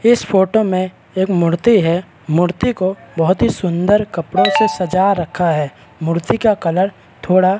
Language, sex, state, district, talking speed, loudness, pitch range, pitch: Hindi, male, Uttarakhand, Tehri Garhwal, 165 wpm, -16 LUFS, 170-195 Hz, 185 Hz